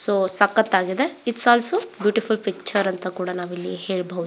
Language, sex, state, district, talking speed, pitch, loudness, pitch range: Kannada, female, Karnataka, Belgaum, 140 wpm, 200 Hz, -22 LUFS, 185-225 Hz